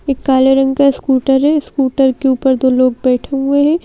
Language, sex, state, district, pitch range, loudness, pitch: Hindi, female, Madhya Pradesh, Bhopal, 260-275 Hz, -13 LUFS, 270 Hz